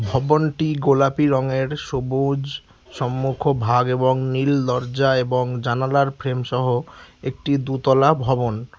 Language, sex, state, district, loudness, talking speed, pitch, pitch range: Bengali, male, West Bengal, Alipurduar, -20 LUFS, 95 wpm, 130 Hz, 125-140 Hz